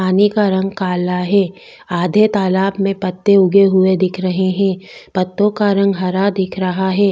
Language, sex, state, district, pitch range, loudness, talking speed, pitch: Hindi, female, Chhattisgarh, Bastar, 185-200 Hz, -15 LUFS, 175 wpm, 190 Hz